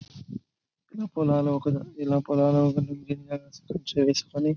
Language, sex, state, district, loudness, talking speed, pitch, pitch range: Telugu, male, Andhra Pradesh, Chittoor, -26 LUFS, 80 wpm, 145 Hz, 140-150 Hz